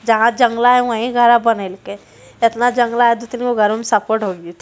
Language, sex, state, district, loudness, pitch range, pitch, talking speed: Hindi, female, Bihar, Jamui, -15 LUFS, 220-240 Hz, 230 Hz, 220 wpm